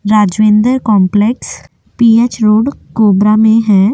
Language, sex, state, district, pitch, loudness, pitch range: Hindi, female, Chhattisgarh, Korba, 215 Hz, -10 LUFS, 210-230 Hz